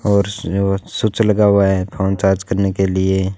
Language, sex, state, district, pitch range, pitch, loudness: Hindi, male, Rajasthan, Bikaner, 95-100 Hz, 95 Hz, -17 LUFS